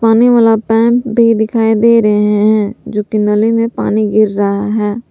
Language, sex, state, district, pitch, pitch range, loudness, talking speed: Hindi, female, Jharkhand, Palamu, 220 Hz, 210-230 Hz, -12 LUFS, 175 wpm